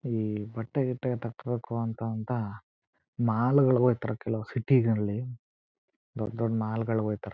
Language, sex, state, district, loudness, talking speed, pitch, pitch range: Kannada, male, Karnataka, Chamarajanagar, -29 LUFS, 120 wpm, 115 Hz, 110-125 Hz